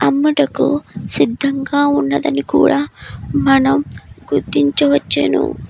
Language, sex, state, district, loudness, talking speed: Telugu, female, Andhra Pradesh, Guntur, -15 LUFS, 65 wpm